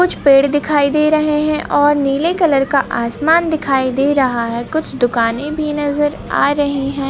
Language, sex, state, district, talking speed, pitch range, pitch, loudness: Hindi, male, Madhya Pradesh, Bhopal, 185 wpm, 270-300 Hz, 290 Hz, -15 LUFS